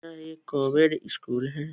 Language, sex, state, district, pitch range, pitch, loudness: Hindi, female, Bihar, East Champaran, 140-160 Hz, 155 Hz, -26 LUFS